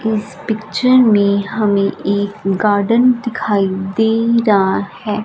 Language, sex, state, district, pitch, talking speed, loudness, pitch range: Hindi, female, Punjab, Fazilka, 210 Hz, 115 wpm, -15 LUFS, 200-225 Hz